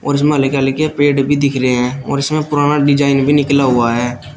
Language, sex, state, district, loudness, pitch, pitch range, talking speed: Hindi, male, Uttar Pradesh, Shamli, -14 LUFS, 140 Hz, 135-145 Hz, 220 wpm